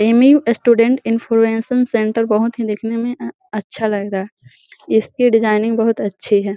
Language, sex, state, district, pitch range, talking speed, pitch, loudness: Hindi, female, Bihar, Gaya, 215-235 Hz, 155 wpm, 225 Hz, -16 LUFS